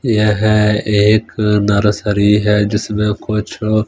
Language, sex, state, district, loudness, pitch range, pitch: Hindi, male, Punjab, Fazilka, -14 LUFS, 105-110 Hz, 105 Hz